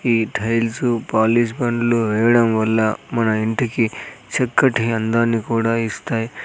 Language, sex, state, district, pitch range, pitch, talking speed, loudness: Telugu, male, Andhra Pradesh, Sri Satya Sai, 110-120 Hz, 115 Hz, 110 wpm, -19 LUFS